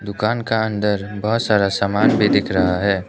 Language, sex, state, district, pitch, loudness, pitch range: Hindi, male, Arunachal Pradesh, Lower Dibang Valley, 100 Hz, -18 LUFS, 100-105 Hz